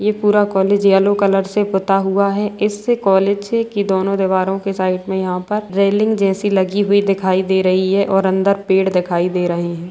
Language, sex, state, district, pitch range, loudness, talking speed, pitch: Hindi, male, Bihar, Araria, 190-205 Hz, -16 LUFS, 210 wpm, 195 Hz